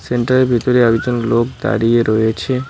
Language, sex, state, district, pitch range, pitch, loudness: Bengali, male, West Bengal, Cooch Behar, 115-125 Hz, 120 Hz, -15 LUFS